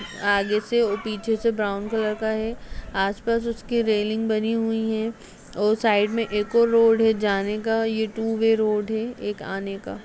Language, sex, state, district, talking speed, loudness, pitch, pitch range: Hindi, female, Chhattisgarh, Kabirdham, 195 wpm, -23 LUFS, 220 Hz, 210-225 Hz